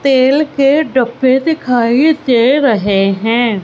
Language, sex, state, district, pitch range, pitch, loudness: Hindi, female, Madhya Pradesh, Katni, 235-280 Hz, 255 Hz, -12 LUFS